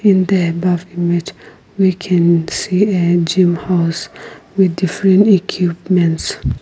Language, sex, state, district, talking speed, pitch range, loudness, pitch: English, female, Nagaland, Kohima, 120 wpm, 170-190 Hz, -15 LUFS, 180 Hz